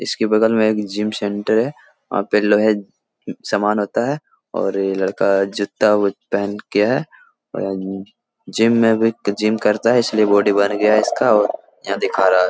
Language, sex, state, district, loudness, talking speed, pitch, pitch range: Hindi, male, Bihar, Jahanabad, -18 LUFS, 170 wpm, 105 Hz, 100-110 Hz